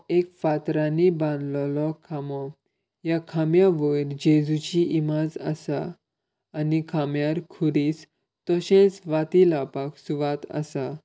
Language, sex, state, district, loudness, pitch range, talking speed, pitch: Konkani, male, Goa, North and South Goa, -24 LUFS, 145-170 Hz, 100 wpm, 155 Hz